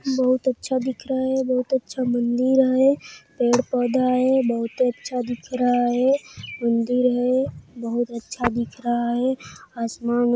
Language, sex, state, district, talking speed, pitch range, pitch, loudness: Hindi, female, Chhattisgarh, Sarguja, 145 wpm, 240-260 Hz, 250 Hz, -22 LUFS